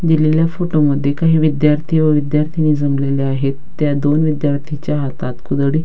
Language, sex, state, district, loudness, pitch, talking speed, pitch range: Marathi, female, Maharashtra, Dhule, -16 LUFS, 150 Hz, 155 wpm, 140-155 Hz